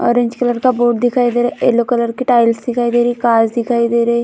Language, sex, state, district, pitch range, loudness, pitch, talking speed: Hindi, female, Chhattisgarh, Balrampur, 235-245 Hz, -14 LUFS, 240 Hz, 270 wpm